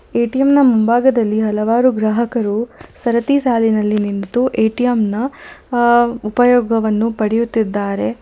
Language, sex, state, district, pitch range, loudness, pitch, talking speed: Kannada, female, Karnataka, Bangalore, 215-245 Hz, -15 LUFS, 230 Hz, 95 wpm